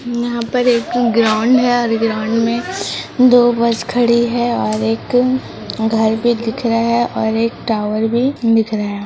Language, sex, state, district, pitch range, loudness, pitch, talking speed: Hindi, female, Bihar, Gopalganj, 220-240 Hz, -15 LUFS, 235 Hz, 170 wpm